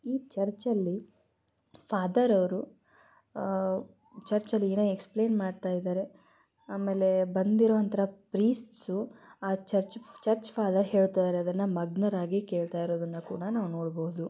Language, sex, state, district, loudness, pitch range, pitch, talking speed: Kannada, female, Karnataka, Belgaum, -30 LUFS, 185-215 Hz, 195 Hz, 100 wpm